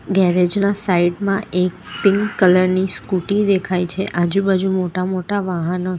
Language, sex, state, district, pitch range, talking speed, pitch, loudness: Gujarati, female, Gujarat, Valsad, 180-195 Hz, 140 wpm, 185 Hz, -18 LUFS